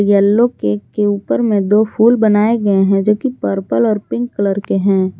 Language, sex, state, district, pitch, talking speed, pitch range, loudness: Hindi, female, Jharkhand, Garhwa, 205 Hz, 205 wpm, 195-220 Hz, -14 LUFS